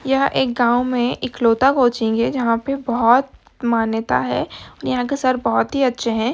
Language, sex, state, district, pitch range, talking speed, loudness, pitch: Hindi, female, Bihar, Jahanabad, 235-260 Hz, 180 wpm, -18 LUFS, 245 Hz